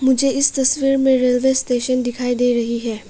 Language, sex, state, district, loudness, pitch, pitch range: Hindi, female, Arunachal Pradesh, Papum Pare, -17 LUFS, 255 Hz, 245-265 Hz